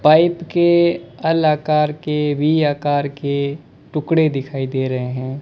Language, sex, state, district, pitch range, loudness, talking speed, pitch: Hindi, male, Rajasthan, Bikaner, 140-160 Hz, -18 LUFS, 145 wpm, 150 Hz